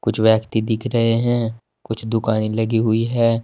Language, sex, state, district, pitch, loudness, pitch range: Hindi, male, Uttar Pradesh, Saharanpur, 115 Hz, -19 LUFS, 110-115 Hz